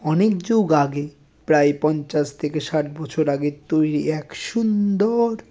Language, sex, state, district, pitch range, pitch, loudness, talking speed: Bengali, male, West Bengal, North 24 Parganas, 145-200 Hz, 155 Hz, -21 LUFS, 140 wpm